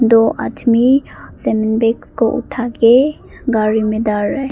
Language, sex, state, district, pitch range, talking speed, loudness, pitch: Hindi, female, Arunachal Pradesh, Papum Pare, 220-255 Hz, 145 wpm, -15 LUFS, 230 Hz